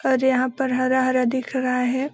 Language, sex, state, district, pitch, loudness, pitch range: Hindi, female, Chhattisgarh, Balrampur, 255 Hz, -21 LUFS, 255-260 Hz